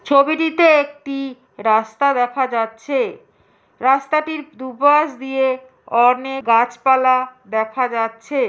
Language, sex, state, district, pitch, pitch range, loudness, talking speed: Bengali, female, West Bengal, Jhargram, 265 Hz, 245-285 Hz, -18 LUFS, 85 wpm